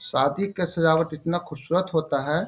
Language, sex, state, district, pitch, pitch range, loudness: Hindi, male, Bihar, Bhagalpur, 160 Hz, 150-175 Hz, -24 LUFS